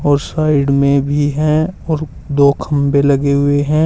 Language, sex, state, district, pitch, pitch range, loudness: Hindi, male, Uttar Pradesh, Saharanpur, 145 Hz, 140-155 Hz, -14 LUFS